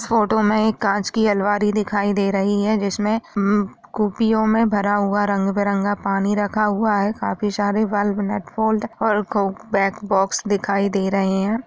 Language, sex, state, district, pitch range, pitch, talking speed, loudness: Hindi, female, Uttar Pradesh, Etah, 200-215 Hz, 205 Hz, 185 wpm, -20 LUFS